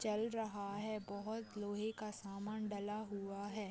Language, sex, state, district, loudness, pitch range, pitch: Hindi, female, Uttar Pradesh, Deoria, -44 LUFS, 205-215 Hz, 210 Hz